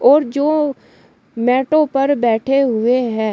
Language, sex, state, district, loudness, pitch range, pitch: Hindi, female, Uttar Pradesh, Shamli, -16 LUFS, 240-285 Hz, 270 Hz